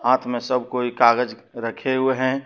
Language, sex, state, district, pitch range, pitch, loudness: Hindi, male, Jharkhand, Deoghar, 120-130 Hz, 125 Hz, -21 LUFS